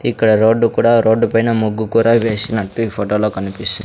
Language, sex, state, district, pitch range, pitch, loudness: Telugu, male, Andhra Pradesh, Sri Satya Sai, 105-115 Hz, 110 Hz, -15 LUFS